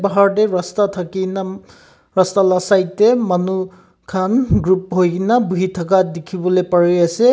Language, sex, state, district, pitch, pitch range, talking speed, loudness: Nagamese, male, Nagaland, Kohima, 185 Hz, 180-200 Hz, 145 wpm, -16 LUFS